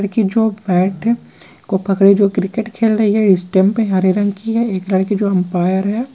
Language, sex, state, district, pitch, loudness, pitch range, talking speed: Hindi, female, Rajasthan, Churu, 200 Hz, -15 LUFS, 190-220 Hz, 175 wpm